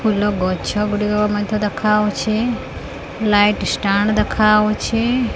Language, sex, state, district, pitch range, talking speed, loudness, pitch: Odia, female, Odisha, Khordha, 205-215 Hz, 90 wpm, -17 LUFS, 210 Hz